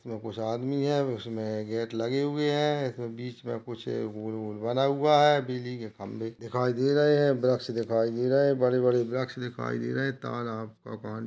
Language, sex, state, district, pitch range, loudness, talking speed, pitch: Hindi, male, Maharashtra, Aurangabad, 115-135 Hz, -28 LUFS, 220 wpm, 120 Hz